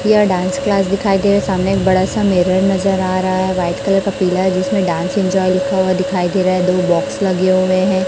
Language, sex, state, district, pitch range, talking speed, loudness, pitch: Hindi, male, Chhattisgarh, Raipur, 185-195 Hz, 235 wpm, -15 LUFS, 185 Hz